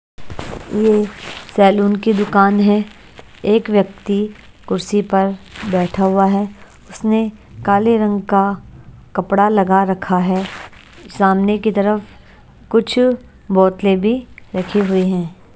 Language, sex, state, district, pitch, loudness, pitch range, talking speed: Hindi, female, Haryana, Jhajjar, 200 Hz, -16 LUFS, 195-210 Hz, 110 wpm